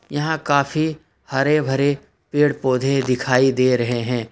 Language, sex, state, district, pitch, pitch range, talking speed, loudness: Hindi, male, Jharkhand, Ranchi, 135 Hz, 125-145 Hz, 140 wpm, -19 LUFS